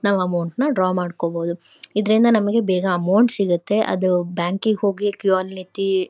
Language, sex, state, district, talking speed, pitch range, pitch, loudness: Kannada, female, Karnataka, Shimoga, 155 wpm, 180-210 Hz, 190 Hz, -20 LUFS